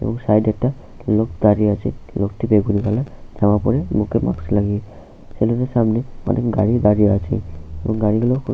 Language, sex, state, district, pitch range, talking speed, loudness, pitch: Bengali, male, West Bengal, Paschim Medinipur, 105-115 Hz, 140 wpm, -19 LUFS, 105 Hz